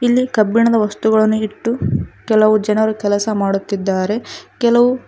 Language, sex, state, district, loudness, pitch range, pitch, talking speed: Kannada, female, Karnataka, Koppal, -16 LUFS, 205-230 Hz, 215 Hz, 105 wpm